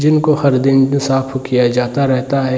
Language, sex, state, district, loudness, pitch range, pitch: Hindi, male, Bihar, Jamui, -14 LUFS, 130-140 Hz, 135 Hz